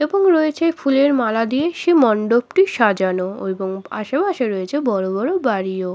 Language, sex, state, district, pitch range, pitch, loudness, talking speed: Bengali, female, West Bengal, Malda, 195-310 Hz, 240 Hz, -18 LUFS, 140 wpm